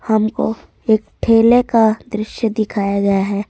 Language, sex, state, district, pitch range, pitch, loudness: Hindi, female, Rajasthan, Jaipur, 205-225 Hz, 220 Hz, -16 LUFS